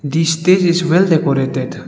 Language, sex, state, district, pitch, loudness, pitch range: English, male, Arunachal Pradesh, Lower Dibang Valley, 165 Hz, -14 LUFS, 135-175 Hz